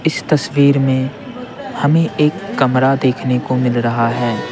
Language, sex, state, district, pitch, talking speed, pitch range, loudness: Hindi, male, Bihar, Patna, 135 Hz, 145 wpm, 125-145 Hz, -15 LUFS